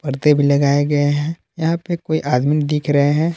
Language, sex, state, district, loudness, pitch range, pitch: Hindi, male, Jharkhand, Palamu, -17 LUFS, 145-155 Hz, 150 Hz